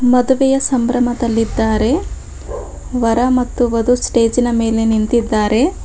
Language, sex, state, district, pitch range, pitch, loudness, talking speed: Kannada, female, Karnataka, Bangalore, 230-250 Hz, 240 Hz, -15 LUFS, 80 wpm